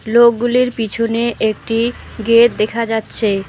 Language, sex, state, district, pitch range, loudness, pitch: Bengali, female, West Bengal, Alipurduar, 220-235 Hz, -15 LUFS, 230 Hz